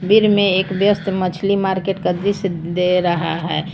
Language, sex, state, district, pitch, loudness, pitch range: Hindi, female, Jharkhand, Palamu, 190 Hz, -18 LUFS, 175-200 Hz